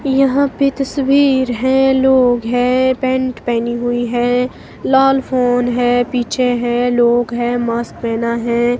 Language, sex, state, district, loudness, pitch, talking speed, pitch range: Hindi, female, Himachal Pradesh, Shimla, -15 LUFS, 245 Hz, 135 wpm, 240-265 Hz